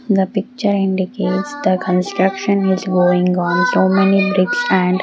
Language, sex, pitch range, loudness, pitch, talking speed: English, female, 185-200 Hz, -16 LUFS, 190 Hz, 155 wpm